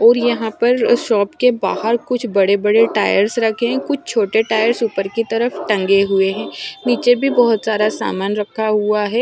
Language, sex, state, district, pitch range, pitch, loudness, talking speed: Hindi, male, Punjab, Fazilka, 210-240 Hz, 225 Hz, -16 LUFS, 180 wpm